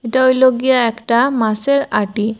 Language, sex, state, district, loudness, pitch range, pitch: Bengali, female, Assam, Hailakandi, -15 LUFS, 220-260 Hz, 240 Hz